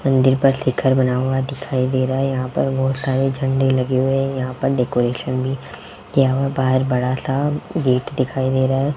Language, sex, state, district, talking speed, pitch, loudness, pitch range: Hindi, male, Rajasthan, Jaipur, 205 wpm, 130 Hz, -19 LUFS, 130-135 Hz